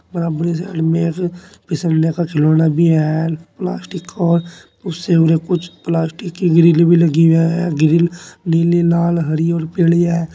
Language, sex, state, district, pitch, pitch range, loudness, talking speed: Hindi, male, Uttar Pradesh, Saharanpur, 170 Hz, 165-175 Hz, -15 LUFS, 130 wpm